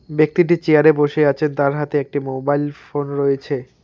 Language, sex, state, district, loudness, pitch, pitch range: Bengali, male, West Bengal, Alipurduar, -18 LUFS, 145 Hz, 140-155 Hz